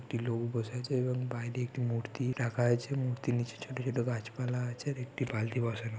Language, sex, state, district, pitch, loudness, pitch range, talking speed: Bengali, female, West Bengal, Jhargram, 125 Hz, -34 LUFS, 120-125 Hz, 190 wpm